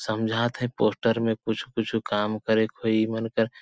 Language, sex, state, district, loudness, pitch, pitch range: Sadri, male, Chhattisgarh, Jashpur, -26 LUFS, 110 Hz, 110-115 Hz